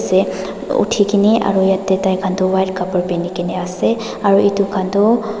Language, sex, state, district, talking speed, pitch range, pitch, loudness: Nagamese, female, Nagaland, Dimapur, 165 wpm, 185-200 Hz, 190 Hz, -16 LUFS